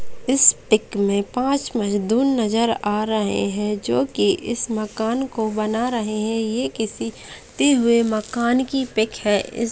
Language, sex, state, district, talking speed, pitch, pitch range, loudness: Hindi, female, Bihar, Purnia, 155 wpm, 225 Hz, 210-245 Hz, -20 LUFS